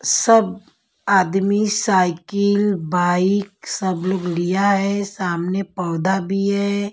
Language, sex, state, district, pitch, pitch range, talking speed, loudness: Hindi, female, Bihar, Patna, 195 Hz, 180-200 Hz, 105 wpm, -19 LUFS